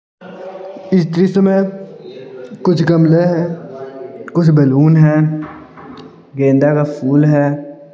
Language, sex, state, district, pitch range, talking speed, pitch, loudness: Hindi, male, Bihar, Patna, 145-180 Hz, 105 wpm, 160 Hz, -13 LUFS